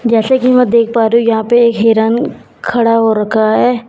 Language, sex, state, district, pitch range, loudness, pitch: Hindi, female, Bihar, Katihar, 225-240 Hz, -11 LUFS, 230 Hz